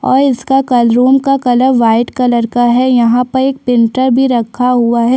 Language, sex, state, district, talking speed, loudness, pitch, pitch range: Hindi, female, Chhattisgarh, Sukma, 220 wpm, -11 LUFS, 250 Hz, 240-260 Hz